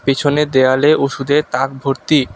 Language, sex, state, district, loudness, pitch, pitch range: Bengali, male, West Bengal, Alipurduar, -15 LUFS, 140 Hz, 135-150 Hz